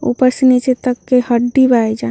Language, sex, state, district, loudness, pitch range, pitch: Bhojpuri, female, Uttar Pradesh, Ghazipur, -13 LUFS, 240-255 Hz, 250 Hz